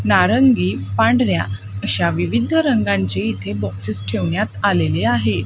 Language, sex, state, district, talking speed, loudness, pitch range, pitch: Marathi, female, Maharashtra, Gondia, 110 wpm, -18 LUFS, 95-110 Hz, 100 Hz